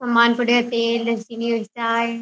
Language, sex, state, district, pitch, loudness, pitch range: Rajasthani, female, Rajasthan, Churu, 235 Hz, -20 LUFS, 230-235 Hz